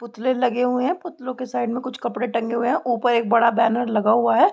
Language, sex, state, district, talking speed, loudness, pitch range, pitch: Hindi, female, Bihar, East Champaran, 265 wpm, -21 LUFS, 235-255 Hz, 245 Hz